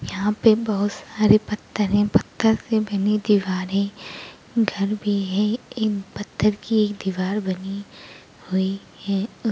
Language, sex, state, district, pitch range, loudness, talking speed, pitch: Hindi, female, Bihar, Begusarai, 195-215 Hz, -22 LUFS, 125 wpm, 205 Hz